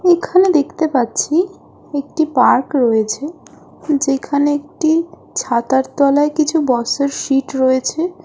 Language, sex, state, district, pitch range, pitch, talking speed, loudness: Bengali, female, West Bengal, Jhargram, 265-320 Hz, 285 Hz, 100 wpm, -16 LUFS